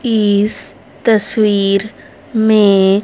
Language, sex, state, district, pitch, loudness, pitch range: Hindi, female, Haryana, Rohtak, 210 Hz, -13 LUFS, 200-220 Hz